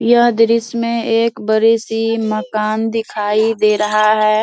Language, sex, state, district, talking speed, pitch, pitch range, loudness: Hindi, female, Bihar, Saharsa, 160 wpm, 225 Hz, 215-230 Hz, -15 LUFS